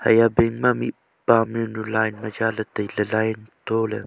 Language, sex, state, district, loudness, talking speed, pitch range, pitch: Wancho, male, Arunachal Pradesh, Longding, -22 LUFS, 190 wpm, 110-115 Hz, 110 Hz